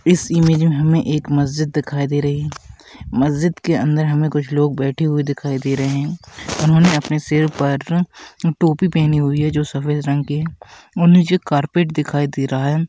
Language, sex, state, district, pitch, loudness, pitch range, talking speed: Hindi, female, Rajasthan, Nagaur, 150 Hz, -17 LUFS, 145-160 Hz, 195 wpm